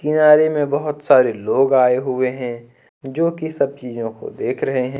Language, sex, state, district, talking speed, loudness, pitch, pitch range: Hindi, male, Jharkhand, Ranchi, 170 wpm, -18 LUFS, 135 Hz, 125-150 Hz